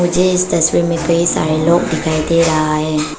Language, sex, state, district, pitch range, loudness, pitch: Hindi, female, Arunachal Pradesh, Papum Pare, 155-170 Hz, -14 LUFS, 165 Hz